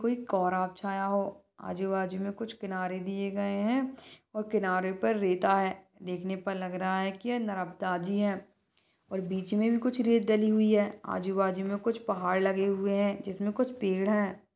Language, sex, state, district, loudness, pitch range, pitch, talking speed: Hindi, female, Chhattisgarh, Balrampur, -30 LUFS, 190-215 Hz, 195 Hz, 195 wpm